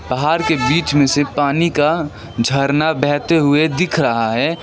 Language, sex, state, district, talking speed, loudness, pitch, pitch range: Hindi, male, West Bengal, Darjeeling, 170 wpm, -16 LUFS, 145 Hz, 140-160 Hz